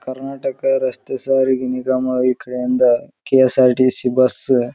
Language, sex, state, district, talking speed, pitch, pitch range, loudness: Kannada, male, Karnataka, Raichur, 140 wpm, 130 Hz, 125-130 Hz, -17 LUFS